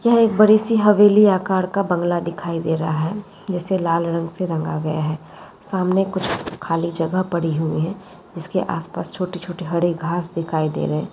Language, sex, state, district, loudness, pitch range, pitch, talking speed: Hindi, female, Bihar, Muzaffarpur, -20 LUFS, 165-190 Hz, 175 Hz, 190 wpm